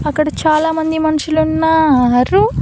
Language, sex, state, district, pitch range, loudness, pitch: Telugu, female, Andhra Pradesh, Annamaya, 305-320 Hz, -14 LUFS, 315 Hz